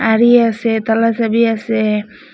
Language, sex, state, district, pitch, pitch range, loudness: Bengali, female, Assam, Hailakandi, 225 Hz, 220-230 Hz, -14 LUFS